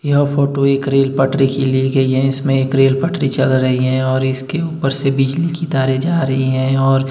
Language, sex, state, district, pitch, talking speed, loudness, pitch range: Hindi, male, Himachal Pradesh, Shimla, 135 Hz, 230 wpm, -15 LUFS, 130-140 Hz